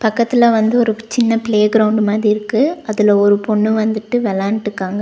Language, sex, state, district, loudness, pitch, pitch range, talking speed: Tamil, female, Tamil Nadu, Nilgiris, -15 LUFS, 220 Hz, 210-230 Hz, 155 wpm